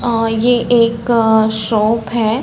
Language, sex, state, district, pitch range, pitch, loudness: Hindi, female, Uttar Pradesh, Varanasi, 220-235 Hz, 230 Hz, -14 LUFS